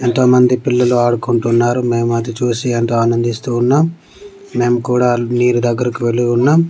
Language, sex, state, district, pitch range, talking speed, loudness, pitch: Telugu, male, Andhra Pradesh, Manyam, 120-125 Hz, 145 wpm, -14 LUFS, 120 Hz